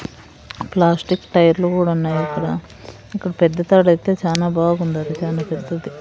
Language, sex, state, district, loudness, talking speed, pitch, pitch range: Telugu, female, Andhra Pradesh, Sri Satya Sai, -18 LUFS, 130 wpm, 165 Hz, 150-175 Hz